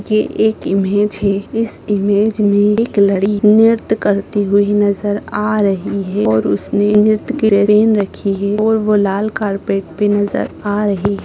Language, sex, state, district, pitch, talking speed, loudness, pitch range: Hindi, male, Bihar, Gaya, 205 Hz, 165 wpm, -15 LUFS, 200-210 Hz